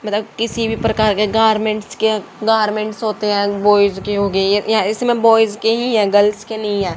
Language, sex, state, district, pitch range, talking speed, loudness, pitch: Hindi, female, Haryana, Rohtak, 205-220 Hz, 200 wpm, -16 LUFS, 215 Hz